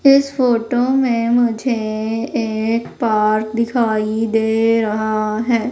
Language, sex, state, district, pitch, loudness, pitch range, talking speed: Hindi, female, Madhya Pradesh, Umaria, 225 Hz, -17 LUFS, 220-245 Hz, 105 wpm